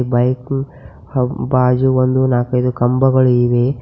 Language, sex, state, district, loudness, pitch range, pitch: Kannada, female, Karnataka, Bidar, -15 LUFS, 120-130 Hz, 125 Hz